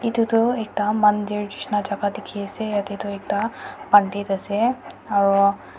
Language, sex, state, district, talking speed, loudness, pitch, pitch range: Nagamese, female, Nagaland, Dimapur, 145 wpm, -22 LUFS, 205 Hz, 200-215 Hz